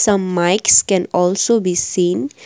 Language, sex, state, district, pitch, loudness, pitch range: English, female, Assam, Kamrup Metropolitan, 185 Hz, -15 LUFS, 180-210 Hz